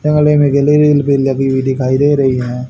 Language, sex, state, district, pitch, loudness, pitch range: Hindi, male, Haryana, Rohtak, 140 Hz, -12 LUFS, 130-145 Hz